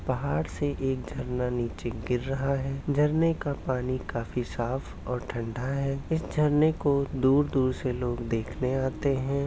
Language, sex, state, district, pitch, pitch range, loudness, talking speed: Hindi, male, Uttar Pradesh, Hamirpur, 130 Hz, 125-140 Hz, -28 LUFS, 165 wpm